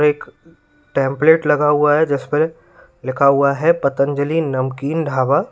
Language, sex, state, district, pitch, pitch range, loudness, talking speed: Hindi, male, Uttar Pradesh, Lalitpur, 145 Hz, 140-160 Hz, -17 LUFS, 140 wpm